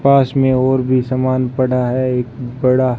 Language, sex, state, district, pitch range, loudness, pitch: Hindi, male, Rajasthan, Bikaner, 125-130 Hz, -16 LUFS, 130 Hz